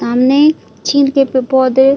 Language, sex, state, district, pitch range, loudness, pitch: Hindi, female, Chhattisgarh, Bilaspur, 260-280 Hz, -12 LUFS, 270 Hz